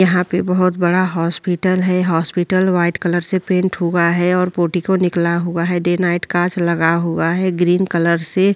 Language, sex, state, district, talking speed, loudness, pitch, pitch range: Hindi, female, Uttar Pradesh, Jyotiba Phule Nagar, 195 wpm, -16 LUFS, 175 Hz, 170-185 Hz